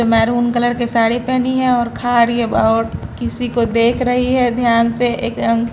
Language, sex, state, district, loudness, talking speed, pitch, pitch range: Hindi, female, Bihar, Patna, -16 LUFS, 180 wpm, 240 Hz, 230-245 Hz